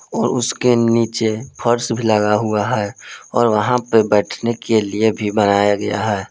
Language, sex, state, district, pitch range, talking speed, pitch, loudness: Hindi, male, Jharkhand, Palamu, 105-115 Hz, 170 wpm, 110 Hz, -17 LUFS